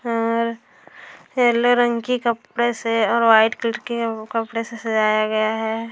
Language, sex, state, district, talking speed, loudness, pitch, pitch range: Hindi, female, Bihar, Darbhanga, 150 wpm, -20 LUFS, 230 Hz, 225-235 Hz